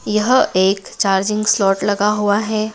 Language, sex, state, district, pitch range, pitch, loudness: Hindi, female, Madhya Pradesh, Dhar, 195-215 Hz, 210 Hz, -16 LUFS